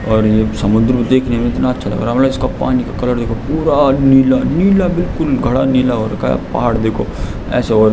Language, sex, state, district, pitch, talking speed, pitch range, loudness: Hindi, male, Uttarakhand, Tehri Garhwal, 125 Hz, 220 wpm, 110-130 Hz, -14 LUFS